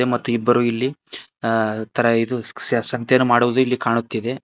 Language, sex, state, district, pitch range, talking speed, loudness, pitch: Kannada, male, Karnataka, Koppal, 115-125 Hz, 135 wpm, -20 LUFS, 120 Hz